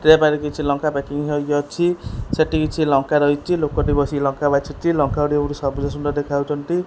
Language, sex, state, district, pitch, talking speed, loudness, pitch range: Odia, male, Odisha, Khordha, 145 Hz, 185 wpm, -20 LUFS, 145-155 Hz